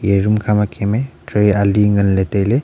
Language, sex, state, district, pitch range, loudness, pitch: Wancho, male, Arunachal Pradesh, Longding, 100-105 Hz, -16 LUFS, 105 Hz